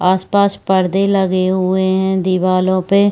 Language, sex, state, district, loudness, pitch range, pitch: Chhattisgarhi, female, Chhattisgarh, Rajnandgaon, -15 LUFS, 185-195 Hz, 190 Hz